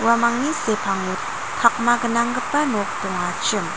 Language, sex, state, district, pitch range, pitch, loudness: Garo, female, Meghalaya, North Garo Hills, 230-250 Hz, 235 Hz, -21 LUFS